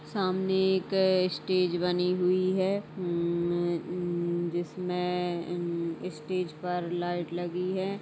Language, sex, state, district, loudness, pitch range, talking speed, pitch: Hindi, female, Chhattisgarh, Kabirdham, -29 LUFS, 175-185 Hz, 110 wpm, 180 Hz